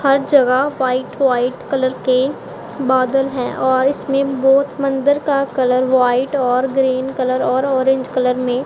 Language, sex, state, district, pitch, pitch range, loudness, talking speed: Hindi, female, Punjab, Pathankot, 265 Hz, 255-275 Hz, -16 LUFS, 150 wpm